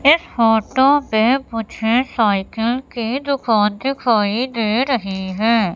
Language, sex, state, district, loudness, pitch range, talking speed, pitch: Hindi, female, Madhya Pradesh, Katni, -18 LUFS, 220-260 Hz, 115 wpm, 230 Hz